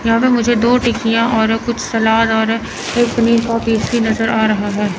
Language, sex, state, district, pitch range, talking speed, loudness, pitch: Hindi, female, Chandigarh, Chandigarh, 220-235 Hz, 190 wpm, -15 LUFS, 230 Hz